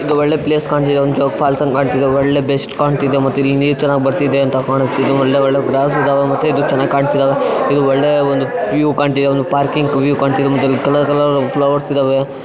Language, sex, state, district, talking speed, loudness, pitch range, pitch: Kannada, male, Karnataka, Chamarajanagar, 195 wpm, -14 LUFS, 135-145 Hz, 140 Hz